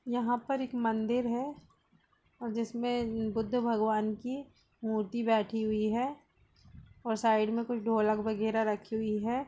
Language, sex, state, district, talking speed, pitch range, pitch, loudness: Hindi, female, Uttar Pradesh, Jalaun, 145 wpm, 220-245 Hz, 225 Hz, -32 LUFS